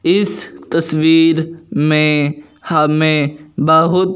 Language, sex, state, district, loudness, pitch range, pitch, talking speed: Hindi, male, Punjab, Fazilka, -14 LUFS, 150-165 Hz, 160 Hz, 70 wpm